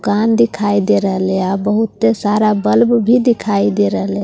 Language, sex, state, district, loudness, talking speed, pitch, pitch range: Hindi, female, Bihar, Katihar, -14 LUFS, 170 wpm, 205 Hz, 185-220 Hz